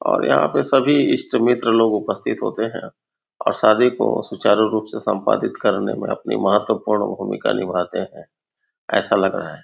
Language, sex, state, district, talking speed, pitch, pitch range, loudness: Hindi, male, Chhattisgarh, Raigarh, 175 wpm, 115 Hz, 110-125 Hz, -19 LUFS